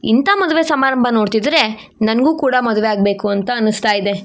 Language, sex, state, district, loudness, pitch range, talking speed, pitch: Kannada, female, Karnataka, Shimoga, -15 LUFS, 215-270 Hz, 155 wpm, 225 Hz